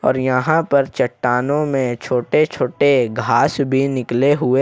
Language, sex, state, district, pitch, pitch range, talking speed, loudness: Hindi, male, Jharkhand, Ranchi, 135 Hz, 125-140 Hz, 145 wpm, -17 LUFS